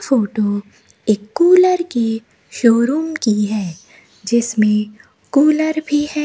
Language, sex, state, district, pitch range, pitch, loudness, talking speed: Hindi, female, Rajasthan, Bikaner, 210-300 Hz, 235 Hz, -16 LUFS, 105 wpm